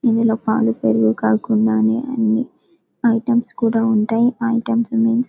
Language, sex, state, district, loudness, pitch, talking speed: Telugu, female, Telangana, Karimnagar, -18 LUFS, 225 Hz, 125 wpm